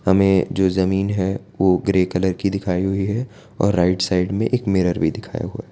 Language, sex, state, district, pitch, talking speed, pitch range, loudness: Hindi, male, Gujarat, Valsad, 95 Hz, 210 wpm, 90-100 Hz, -20 LUFS